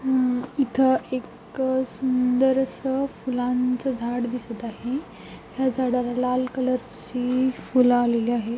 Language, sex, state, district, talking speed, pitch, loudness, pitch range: Marathi, female, Maharashtra, Pune, 120 wpm, 255 Hz, -24 LUFS, 245-260 Hz